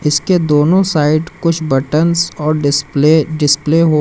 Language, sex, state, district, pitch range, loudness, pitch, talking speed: Hindi, male, Madhya Pradesh, Umaria, 150-165 Hz, -13 LUFS, 155 Hz, 135 wpm